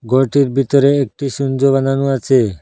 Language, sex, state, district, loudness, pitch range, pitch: Bengali, male, Assam, Hailakandi, -15 LUFS, 130-140 Hz, 135 Hz